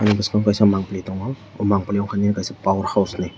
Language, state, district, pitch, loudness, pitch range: Kokborok, Tripura, West Tripura, 100 Hz, -21 LUFS, 95-105 Hz